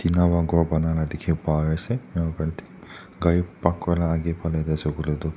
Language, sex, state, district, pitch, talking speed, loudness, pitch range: Nagamese, male, Nagaland, Dimapur, 85 Hz, 165 wpm, -24 LUFS, 80-85 Hz